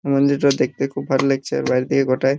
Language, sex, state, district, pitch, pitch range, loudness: Bengali, male, West Bengal, Purulia, 135 Hz, 135-140 Hz, -19 LUFS